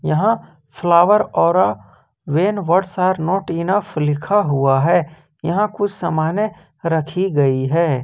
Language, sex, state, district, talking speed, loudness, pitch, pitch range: Hindi, male, Jharkhand, Ranchi, 120 wpm, -18 LUFS, 170 Hz, 155-200 Hz